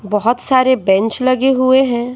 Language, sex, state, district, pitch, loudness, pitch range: Hindi, female, Bihar, Patna, 250 Hz, -13 LUFS, 225-260 Hz